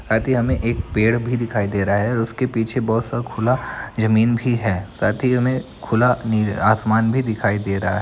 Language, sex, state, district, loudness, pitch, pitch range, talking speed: Hindi, female, Bihar, Madhepura, -20 LUFS, 115 Hz, 105-120 Hz, 210 wpm